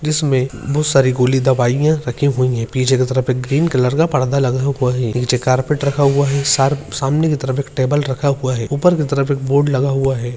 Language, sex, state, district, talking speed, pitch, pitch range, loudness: Hindi, male, Uttarakhand, Tehri Garhwal, 230 wpm, 135 Hz, 130-140 Hz, -16 LUFS